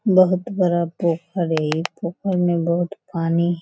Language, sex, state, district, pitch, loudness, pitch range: Hindi, female, Bihar, Sitamarhi, 175 Hz, -21 LUFS, 170-185 Hz